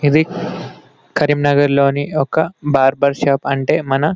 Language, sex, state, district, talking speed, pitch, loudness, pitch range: Telugu, male, Telangana, Karimnagar, 100 wpm, 145 Hz, -16 LUFS, 140-155 Hz